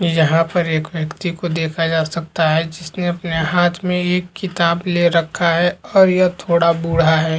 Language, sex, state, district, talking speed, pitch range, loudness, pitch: Chhattisgarhi, male, Chhattisgarh, Jashpur, 185 wpm, 165-175 Hz, -17 LUFS, 170 Hz